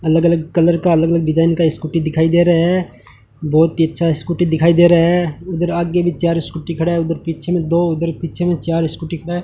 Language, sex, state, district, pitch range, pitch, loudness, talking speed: Hindi, male, Rajasthan, Bikaner, 160-170 Hz, 165 Hz, -16 LUFS, 250 wpm